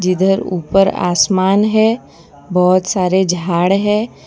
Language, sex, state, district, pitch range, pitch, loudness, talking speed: Hindi, female, Gujarat, Valsad, 180-195 Hz, 185 Hz, -14 LUFS, 110 wpm